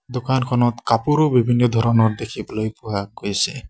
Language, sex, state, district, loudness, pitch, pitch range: Assamese, male, Assam, Sonitpur, -20 LUFS, 120 Hz, 110-125 Hz